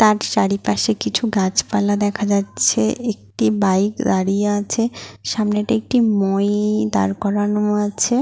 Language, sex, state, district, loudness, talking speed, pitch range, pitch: Bengali, female, West Bengal, Paschim Medinipur, -18 LUFS, 140 wpm, 190-210 Hz, 205 Hz